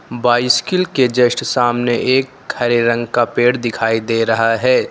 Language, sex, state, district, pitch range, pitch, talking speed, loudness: Hindi, male, Uttar Pradesh, Lucknow, 115-125 Hz, 120 Hz, 160 wpm, -15 LUFS